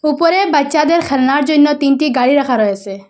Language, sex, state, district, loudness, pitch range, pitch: Bengali, female, Assam, Hailakandi, -13 LUFS, 260-300 Hz, 285 Hz